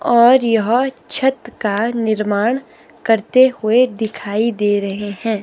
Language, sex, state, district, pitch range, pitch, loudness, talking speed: Hindi, female, Himachal Pradesh, Shimla, 210-245 Hz, 225 Hz, -16 LUFS, 120 wpm